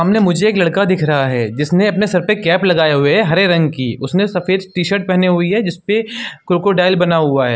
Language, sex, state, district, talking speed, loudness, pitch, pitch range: Hindi, male, Uttar Pradesh, Muzaffarnagar, 240 wpm, -14 LUFS, 180 Hz, 160-200 Hz